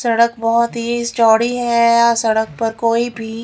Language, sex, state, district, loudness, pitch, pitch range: Hindi, female, Haryana, Rohtak, -15 LUFS, 235 Hz, 225-235 Hz